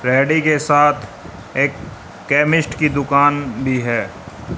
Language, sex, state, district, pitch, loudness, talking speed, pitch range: Hindi, male, Haryana, Rohtak, 145 Hz, -16 LUFS, 120 wpm, 130-150 Hz